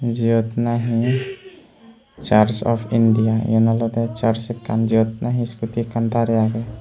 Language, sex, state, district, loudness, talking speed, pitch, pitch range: Chakma, male, Tripura, Unakoti, -19 LUFS, 130 wpm, 115 Hz, 115-120 Hz